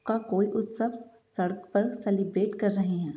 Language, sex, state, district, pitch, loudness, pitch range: Hindi, female, Bihar, East Champaran, 205 Hz, -29 LUFS, 190-225 Hz